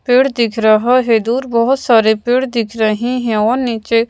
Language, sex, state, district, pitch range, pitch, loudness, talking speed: Hindi, female, Madhya Pradesh, Bhopal, 220-250 Hz, 235 Hz, -14 LUFS, 190 wpm